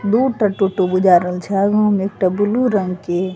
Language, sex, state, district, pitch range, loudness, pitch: Maithili, female, Bihar, Begusarai, 185-210 Hz, -16 LUFS, 195 Hz